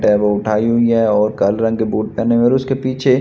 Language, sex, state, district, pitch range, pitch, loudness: Hindi, male, Delhi, New Delhi, 105-120 Hz, 115 Hz, -15 LUFS